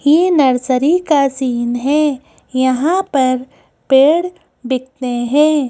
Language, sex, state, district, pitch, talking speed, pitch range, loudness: Hindi, female, Madhya Pradesh, Bhopal, 270 Hz, 105 wpm, 255-300 Hz, -15 LUFS